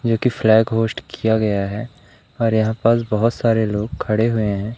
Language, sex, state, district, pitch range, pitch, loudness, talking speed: Hindi, male, Madhya Pradesh, Umaria, 110-115 Hz, 110 Hz, -19 LUFS, 200 wpm